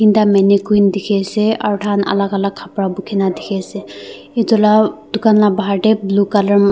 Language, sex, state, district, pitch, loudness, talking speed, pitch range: Nagamese, female, Nagaland, Dimapur, 200 Hz, -15 LUFS, 190 wpm, 195-215 Hz